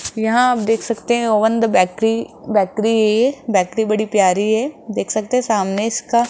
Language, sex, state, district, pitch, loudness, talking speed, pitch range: Hindi, female, Rajasthan, Jaipur, 220 Hz, -17 LUFS, 170 wpm, 215-235 Hz